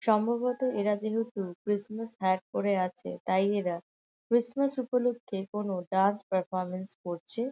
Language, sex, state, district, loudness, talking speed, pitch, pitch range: Bengali, female, West Bengal, Kolkata, -31 LUFS, 120 wpm, 205 Hz, 185-230 Hz